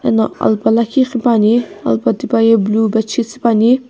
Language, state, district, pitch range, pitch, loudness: Sumi, Nagaland, Kohima, 220-240 Hz, 225 Hz, -14 LUFS